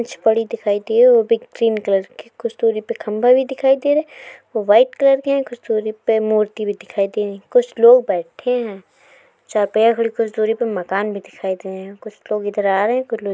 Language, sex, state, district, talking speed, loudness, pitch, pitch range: Hindi, female, Uttar Pradesh, Jalaun, 245 wpm, -18 LUFS, 225 Hz, 205-270 Hz